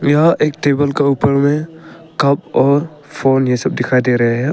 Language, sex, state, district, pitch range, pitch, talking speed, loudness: Hindi, male, Arunachal Pradesh, Papum Pare, 135-150 Hz, 140 Hz, 200 wpm, -15 LUFS